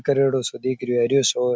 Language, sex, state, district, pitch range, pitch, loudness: Rajasthani, male, Rajasthan, Churu, 125-135 Hz, 130 Hz, -21 LUFS